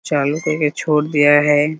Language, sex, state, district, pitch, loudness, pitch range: Hindi, male, Bihar, Muzaffarpur, 150 Hz, -16 LUFS, 145-155 Hz